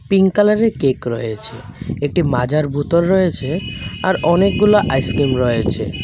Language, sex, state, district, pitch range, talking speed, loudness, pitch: Bengali, male, Tripura, West Tripura, 120-185 Hz, 120 wpm, -16 LUFS, 145 Hz